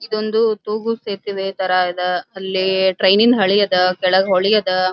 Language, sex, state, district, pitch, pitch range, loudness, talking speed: Kannada, female, Karnataka, Belgaum, 190 Hz, 185-215 Hz, -17 LUFS, 160 wpm